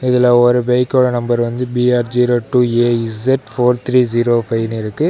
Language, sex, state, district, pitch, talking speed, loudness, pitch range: Tamil, male, Tamil Nadu, Namakkal, 125 Hz, 165 wpm, -15 LUFS, 120-125 Hz